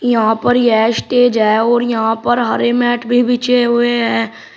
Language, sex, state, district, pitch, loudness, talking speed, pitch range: Hindi, male, Uttar Pradesh, Shamli, 240 Hz, -14 LUFS, 185 wpm, 225-245 Hz